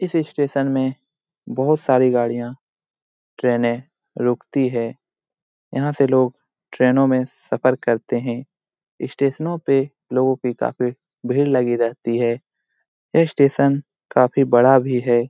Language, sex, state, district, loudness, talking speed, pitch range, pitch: Hindi, male, Bihar, Jamui, -19 LUFS, 130 wpm, 120-140 Hz, 130 Hz